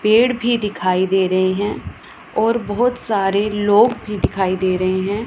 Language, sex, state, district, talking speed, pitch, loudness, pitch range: Hindi, female, Punjab, Pathankot, 170 wpm, 205 Hz, -18 LUFS, 185-220 Hz